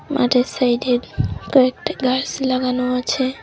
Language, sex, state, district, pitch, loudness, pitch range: Bengali, female, West Bengal, Cooch Behar, 255 Hz, -19 LUFS, 250-260 Hz